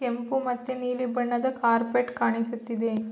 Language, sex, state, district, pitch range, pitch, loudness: Kannada, female, Karnataka, Mysore, 230-250 Hz, 245 Hz, -27 LUFS